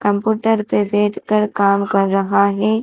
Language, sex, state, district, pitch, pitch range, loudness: Hindi, female, Madhya Pradesh, Dhar, 205 Hz, 200-215 Hz, -16 LUFS